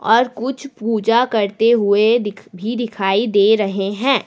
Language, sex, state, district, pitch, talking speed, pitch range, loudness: Hindi, female, Jharkhand, Deoghar, 220 Hz, 155 wpm, 205-235 Hz, -17 LUFS